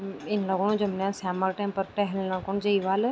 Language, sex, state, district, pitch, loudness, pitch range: Garhwali, female, Uttarakhand, Tehri Garhwal, 195 Hz, -28 LUFS, 190-205 Hz